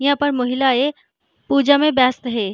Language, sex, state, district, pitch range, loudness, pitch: Hindi, female, Bihar, Jahanabad, 250-285 Hz, -17 LUFS, 270 Hz